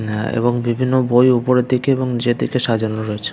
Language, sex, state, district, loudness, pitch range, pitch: Bengali, male, West Bengal, Paschim Medinipur, -17 LUFS, 110-125 Hz, 120 Hz